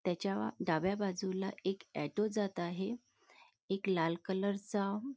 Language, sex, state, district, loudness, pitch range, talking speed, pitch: Marathi, female, Maharashtra, Nagpur, -37 LUFS, 185-200 Hz, 130 wpm, 195 Hz